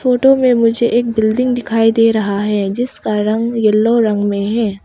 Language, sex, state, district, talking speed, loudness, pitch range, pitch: Hindi, female, Arunachal Pradesh, Papum Pare, 185 wpm, -14 LUFS, 210-235 Hz, 225 Hz